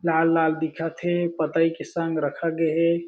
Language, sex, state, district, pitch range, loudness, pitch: Chhattisgarhi, male, Chhattisgarh, Jashpur, 160-170 Hz, -24 LUFS, 165 Hz